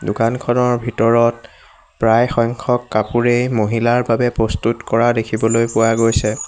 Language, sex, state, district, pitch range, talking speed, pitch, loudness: Assamese, male, Assam, Hailakandi, 110-120 Hz, 110 wpm, 115 Hz, -16 LUFS